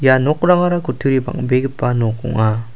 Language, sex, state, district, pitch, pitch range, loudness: Garo, male, Meghalaya, South Garo Hills, 130 Hz, 120-145 Hz, -17 LUFS